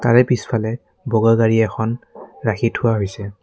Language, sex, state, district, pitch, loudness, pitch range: Assamese, male, Assam, Kamrup Metropolitan, 115 Hz, -18 LUFS, 110-115 Hz